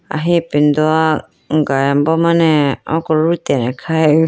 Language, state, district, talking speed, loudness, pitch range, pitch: Idu Mishmi, Arunachal Pradesh, Lower Dibang Valley, 100 wpm, -15 LUFS, 150-160 Hz, 155 Hz